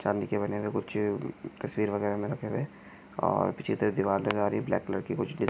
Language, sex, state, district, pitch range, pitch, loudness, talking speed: Hindi, male, Maharashtra, Chandrapur, 100-105 Hz, 105 Hz, -31 LUFS, 250 wpm